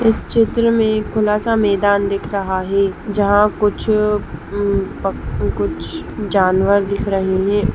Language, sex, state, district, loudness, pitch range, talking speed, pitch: Hindi, female, Chhattisgarh, Bastar, -17 LUFS, 195-210 Hz, 130 wpm, 200 Hz